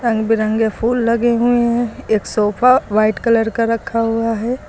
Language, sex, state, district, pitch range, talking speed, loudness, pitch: Hindi, female, Uttar Pradesh, Lucknow, 220-240 Hz, 180 wpm, -16 LUFS, 230 Hz